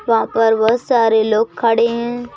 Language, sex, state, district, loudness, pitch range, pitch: Hindi, male, Madhya Pradesh, Bhopal, -15 LUFS, 220-235 Hz, 230 Hz